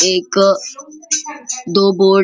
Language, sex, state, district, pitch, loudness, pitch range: Hindi, male, Maharashtra, Nagpur, 200 Hz, -15 LUFS, 195-290 Hz